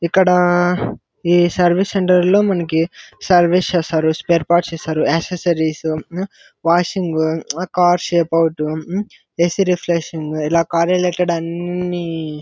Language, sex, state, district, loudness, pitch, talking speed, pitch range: Telugu, male, Andhra Pradesh, Anantapur, -17 LUFS, 175 Hz, 120 wpm, 165-180 Hz